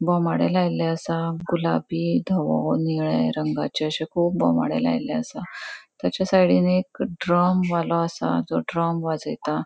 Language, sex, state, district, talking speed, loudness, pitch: Konkani, female, Goa, North and South Goa, 130 wpm, -23 LUFS, 165 Hz